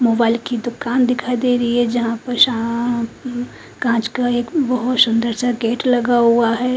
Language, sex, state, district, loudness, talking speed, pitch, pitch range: Hindi, female, Haryana, Charkhi Dadri, -17 LUFS, 175 wpm, 240 Hz, 235-250 Hz